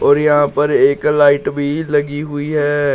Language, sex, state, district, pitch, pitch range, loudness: Hindi, male, Uttar Pradesh, Shamli, 145 Hz, 145-150 Hz, -15 LUFS